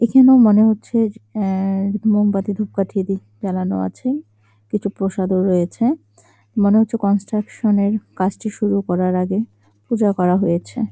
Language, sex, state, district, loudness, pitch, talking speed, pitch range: Bengali, female, West Bengal, Jalpaiguri, -18 LUFS, 200 Hz, 145 wpm, 185-215 Hz